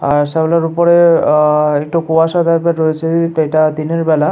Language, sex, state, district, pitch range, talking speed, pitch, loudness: Bengali, male, West Bengal, Paschim Medinipur, 155-165 Hz, 165 wpm, 160 Hz, -13 LUFS